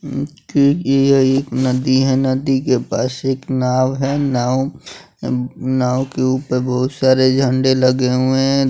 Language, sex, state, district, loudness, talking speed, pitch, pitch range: Hindi, male, Bihar, West Champaran, -16 LUFS, 160 wpm, 130 Hz, 130-135 Hz